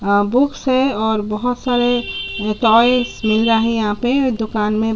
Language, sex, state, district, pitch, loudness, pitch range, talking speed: Hindi, female, Chhattisgarh, Sukma, 225 Hz, -17 LUFS, 215-245 Hz, 170 wpm